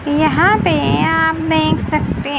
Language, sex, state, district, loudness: Hindi, female, Haryana, Charkhi Dadri, -14 LUFS